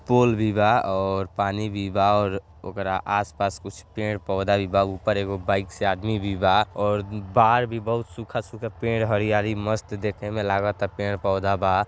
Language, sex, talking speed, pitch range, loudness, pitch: Bhojpuri, male, 165 wpm, 100-105 Hz, -24 LUFS, 100 Hz